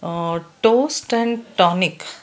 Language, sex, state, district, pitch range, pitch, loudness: Kannada, female, Karnataka, Bangalore, 170-235 Hz, 195 Hz, -19 LUFS